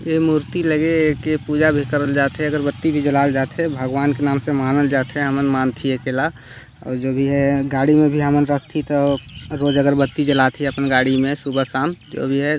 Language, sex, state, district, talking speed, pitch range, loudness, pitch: Hindi, male, Chhattisgarh, Balrampur, 230 wpm, 135-150 Hz, -18 LUFS, 140 Hz